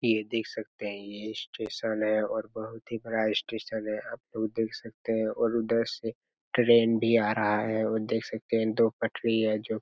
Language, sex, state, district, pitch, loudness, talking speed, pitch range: Hindi, male, Chhattisgarh, Raigarh, 110 Hz, -29 LUFS, 215 wpm, 110-115 Hz